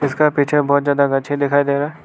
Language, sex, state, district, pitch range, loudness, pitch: Hindi, male, Arunachal Pradesh, Lower Dibang Valley, 140-145 Hz, -17 LUFS, 145 Hz